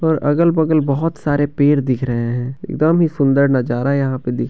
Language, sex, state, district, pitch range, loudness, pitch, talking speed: Hindi, male, Bihar, Begusarai, 130-160 Hz, -17 LUFS, 140 Hz, 240 wpm